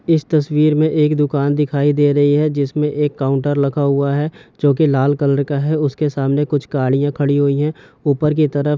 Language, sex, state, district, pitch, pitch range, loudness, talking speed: Hindi, male, Chhattisgarh, Rajnandgaon, 145 Hz, 140-150 Hz, -16 LUFS, 210 wpm